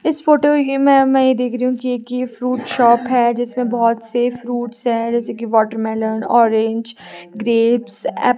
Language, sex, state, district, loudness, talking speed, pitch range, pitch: Hindi, female, Himachal Pradesh, Shimla, -17 LUFS, 170 wpm, 230-250 Hz, 240 Hz